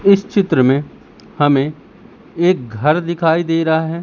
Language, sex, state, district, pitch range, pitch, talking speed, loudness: Hindi, male, Madhya Pradesh, Katni, 145-175 Hz, 160 Hz, 150 wpm, -16 LUFS